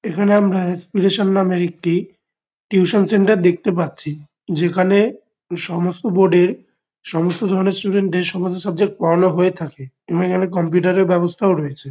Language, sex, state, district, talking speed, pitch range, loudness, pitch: Bengali, male, West Bengal, Kolkata, 140 wpm, 175-195 Hz, -17 LUFS, 185 Hz